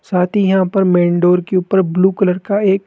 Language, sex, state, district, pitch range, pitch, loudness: Hindi, male, Rajasthan, Jaipur, 180-195 Hz, 190 Hz, -14 LUFS